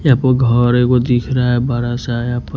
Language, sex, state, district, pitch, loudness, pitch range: Hindi, male, Punjab, Kapurthala, 125 Hz, -15 LUFS, 120-125 Hz